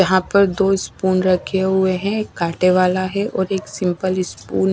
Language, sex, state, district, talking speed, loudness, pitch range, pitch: Hindi, female, Odisha, Nuapada, 205 wpm, -18 LUFS, 180-195 Hz, 185 Hz